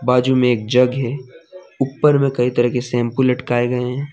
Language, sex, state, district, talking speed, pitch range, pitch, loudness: Hindi, male, Jharkhand, Deoghar, 205 wpm, 125-135 Hz, 125 Hz, -17 LUFS